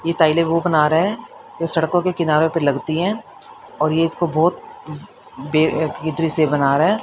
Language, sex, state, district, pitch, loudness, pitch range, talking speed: Hindi, female, Haryana, Charkhi Dadri, 160 Hz, -18 LUFS, 155-170 Hz, 155 wpm